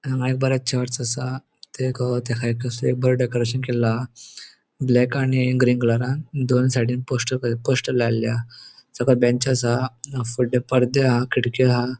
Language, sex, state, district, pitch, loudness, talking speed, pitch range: Konkani, male, Goa, North and South Goa, 125 Hz, -21 LUFS, 145 wpm, 120-130 Hz